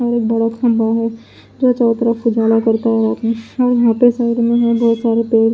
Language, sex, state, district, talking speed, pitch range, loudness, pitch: Hindi, female, Punjab, Pathankot, 95 wpm, 225-235 Hz, -15 LUFS, 230 Hz